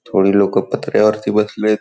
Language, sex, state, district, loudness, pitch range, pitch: Marathi, male, Karnataka, Belgaum, -16 LUFS, 100-105 Hz, 105 Hz